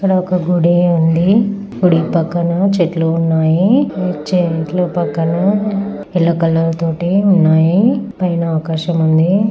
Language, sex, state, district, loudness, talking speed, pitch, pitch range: Telugu, female, Telangana, Karimnagar, -14 LUFS, 115 wpm, 175 Hz, 165-195 Hz